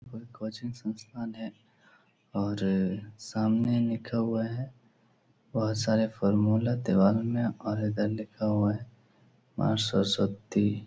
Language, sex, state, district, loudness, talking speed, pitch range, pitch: Hindi, male, Bihar, Supaul, -29 LUFS, 115 wpm, 105-115 Hz, 110 Hz